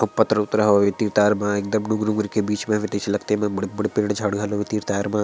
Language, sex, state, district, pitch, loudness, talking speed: Chhattisgarhi, male, Chhattisgarh, Sarguja, 105 Hz, -22 LUFS, 250 wpm